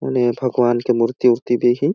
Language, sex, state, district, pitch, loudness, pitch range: Awadhi, male, Chhattisgarh, Balrampur, 120 Hz, -17 LUFS, 120-125 Hz